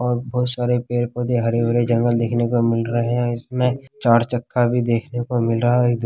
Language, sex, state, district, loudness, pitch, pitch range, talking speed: Hindi, male, Bihar, Kishanganj, -20 LUFS, 120 Hz, 115-125 Hz, 210 wpm